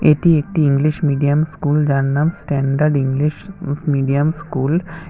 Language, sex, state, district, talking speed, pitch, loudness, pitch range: Bengali, male, Tripura, West Tripura, 155 wpm, 150 Hz, -17 LUFS, 140-160 Hz